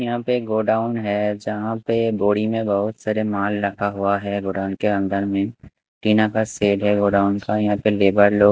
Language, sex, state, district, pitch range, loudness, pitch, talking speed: Hindi, male, Chhattisgarh, Raipur, 100-110 Hz, -20 LUFS, 105 Hz, 205 wpm